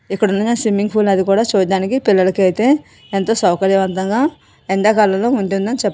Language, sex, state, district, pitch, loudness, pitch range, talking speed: Telugu, female, Andhra Pradesh, Visakhapatnam, 200 Hz, -15 LUFS, 195-225 Hz, 130 wpm